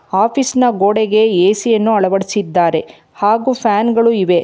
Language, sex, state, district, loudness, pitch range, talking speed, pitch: Kannada, female, Karnataka, Bangalore, -14 LUFS, 195-230 Hz, 135 wpm, 215 Hz